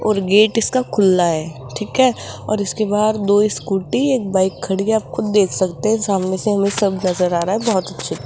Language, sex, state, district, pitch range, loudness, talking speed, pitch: Hindi, female, Rajasthan, Jaipur, 185-215 Hz, -17 LUFS, 235 wpm, 200 Hz